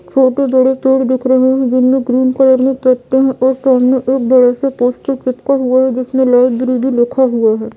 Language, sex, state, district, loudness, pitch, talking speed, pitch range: Hindi, female, Bihar, Purnia, -12 LUFS, 260 Hz, 210 wpm, 255-265 Hz